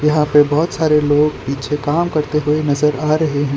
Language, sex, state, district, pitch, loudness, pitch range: Hindi, male, Gujarat, Valsad, 150 Hz, -16 LUFS, 145-155 Hz